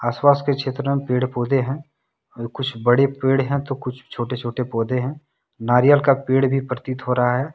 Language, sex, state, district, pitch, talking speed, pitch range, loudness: Hindi, male, Jharkhand, Deoghar, 130 Hz, 215 wpm, 125-140 Hz, -20 LUFS